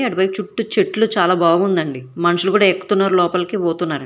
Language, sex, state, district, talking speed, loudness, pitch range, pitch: Telugu, female, Telangana, Hyderabad, 120 wpm, -17 LUFS, 175-200 Hz, 185 Hz